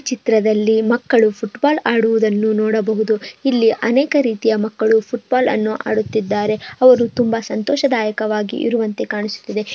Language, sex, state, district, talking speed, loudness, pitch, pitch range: Kannada, female, Karnataka, Bijapur, 105 wpm, -17 LUFS, 220 Hz, 215-245 Hz